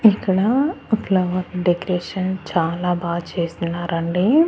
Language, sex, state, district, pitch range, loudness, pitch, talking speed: Telugu, female, Andhra Pradesh, Annamaya, 170-195 Hz, -21 LUFS, 180 Hz, 80 wpm